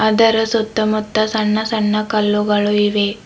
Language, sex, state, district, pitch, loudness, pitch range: Kannada, female, Karnataka, Bidar, 215 Hz, -16 LUFS, 210-220 Hz